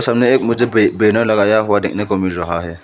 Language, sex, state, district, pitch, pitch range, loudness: Hindi, male, Arunachal Pradesh, Lower Dibang Valley, 105 Hz, 95-115 Hz, -15 LUFS